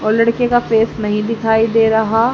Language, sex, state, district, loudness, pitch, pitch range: Hindi, female, Haryana, Jhajjar, -15 LUFS, 225 Hz, 220-230 Hz